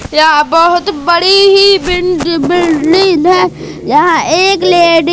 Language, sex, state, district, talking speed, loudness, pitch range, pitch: Hindi, female, Madhya Pradesh, Katni, 130 wpm, -8 LUFS, 330-370 Hz, 350 Hz